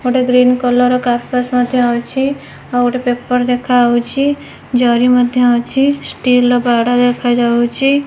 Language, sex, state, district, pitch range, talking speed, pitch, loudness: Odia, female, Odisha, Nuapada, 245-250 Hz, 135 wpm, 245 Hz, -13 LUFS